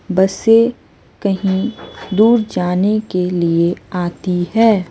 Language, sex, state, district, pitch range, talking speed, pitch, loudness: Hindi, female, Chhattisgarh, Raipur, 180-220 Hz, 100 wpm, 190 Hz, -16 LUFS